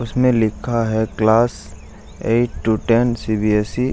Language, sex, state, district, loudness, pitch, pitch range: Hindi, male, Bihar, Jahanabad, -18 LUFS, 110 Hz, 105-120 Hz